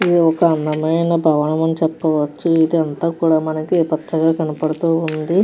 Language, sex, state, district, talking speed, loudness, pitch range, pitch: Telugu, female, Andhra Pradesh, Krishna, 145 wpm, -17 LUFS, 155-165 Hz, 160 Hz